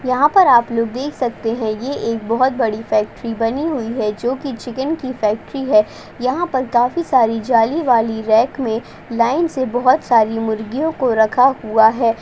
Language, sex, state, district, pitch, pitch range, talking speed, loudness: Hindi, female, Uttar Pradesh, Ghazipur, 240 Hz, 225-265 Hz, 185 wpm, -17 LUFS